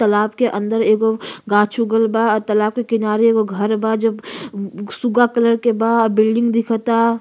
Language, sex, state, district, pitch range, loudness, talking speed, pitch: Bhojpuri, female, Uttar Pradesh, Gorakhpur, 215-230 Hz, -17 LUFS, 175 wpm, 225 Hz